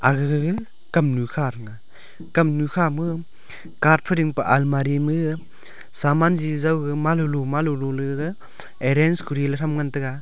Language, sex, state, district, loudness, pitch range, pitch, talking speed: Wancho, male, Arunachal Pradesh, Longding, -22 LUFS, 140-160 Hz, 150 Hz, 165 wpm